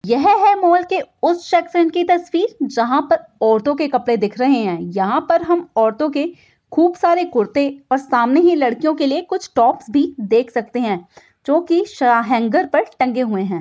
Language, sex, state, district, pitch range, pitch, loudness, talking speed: Hindi, female, Bihar, Saran, 235-345 Hz, 285 Hz, -17 LUFS, 195 wpm